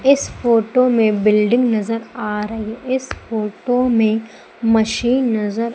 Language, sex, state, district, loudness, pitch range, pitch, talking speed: Hindi, female, Madhya Pradesh, Umaria, -18 LUFS, 215-245 Hz, 225 Hz, 135 wpm